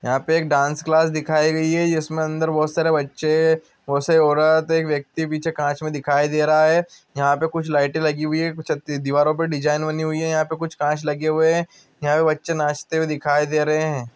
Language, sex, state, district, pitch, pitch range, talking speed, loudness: Hindi, male, Andhra Pradesh, Anantapur, 155 Hz, 150-160 Hz, 215 wpm, -20 LUFS